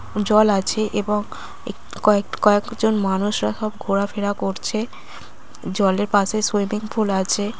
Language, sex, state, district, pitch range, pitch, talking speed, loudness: Bengali, female, West Bengal, Dakshin Dinajpur, 200-215 Hz, 205 Hz, 120 wpm, -20 LUFS